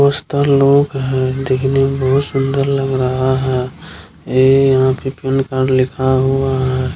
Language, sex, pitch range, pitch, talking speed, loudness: Maithili, male, 130-135 Hz, 135 Hz, 145 wpm, -15 LUFS